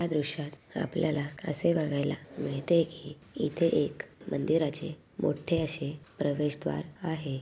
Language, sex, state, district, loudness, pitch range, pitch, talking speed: Marathi, female, Maharashtra, Sindhudurg, -31 LUFS, 145-165 Hz, 150 Hz, 115 wpm